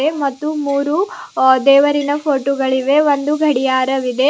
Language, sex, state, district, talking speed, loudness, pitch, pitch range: Kannada, female, Karnataka, Bidar, 125 wpm, -15 LUFS, 280 Hz, 265-295 Hz